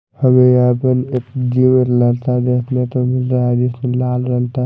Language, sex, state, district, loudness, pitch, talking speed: Hindi, male, Odisha, Malkangiri, -15 LUFS, 125 Hz, 180 wpm